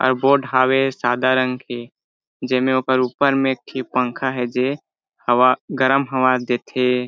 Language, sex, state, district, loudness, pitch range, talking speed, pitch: Chhattisgarhi, male, Chhattisgarh, Jashpur, -19 LUFS, 125-130 Hz, 160 wpm, 130 Hz